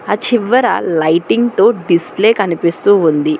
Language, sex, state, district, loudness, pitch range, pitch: Telugu, female, Telangana, Hyderabad, -13 LUFS, 165-230 Hz, 195 Hz